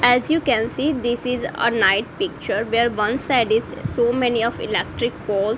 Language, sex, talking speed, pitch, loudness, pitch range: English, female, 195 wpm, 235 Hz, -20 LUFS, 225-250 Hz